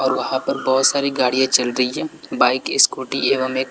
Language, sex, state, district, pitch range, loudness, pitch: Hindi, male, Bihar, West Champaran, 125-135 Hz, -18 LUFS, 130 Hz